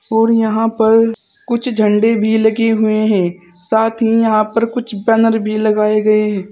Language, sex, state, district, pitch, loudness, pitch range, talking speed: Hindi, female, Uttar Pradesh, Saharanpur, 220 Hz, -14 LUFS, 215-225 Hz, 175 wpm